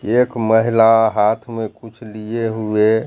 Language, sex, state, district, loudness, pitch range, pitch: Hindi, male, Bihar, Katihar, -16 LUFS, 110-115 Hz, 110 Hz